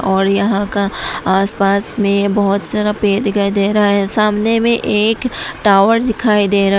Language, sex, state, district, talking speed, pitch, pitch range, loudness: Hindi, female, Tripura, West Tripura, 175 wpm, 205 Hz, 200-215 Hz, -14 LUFS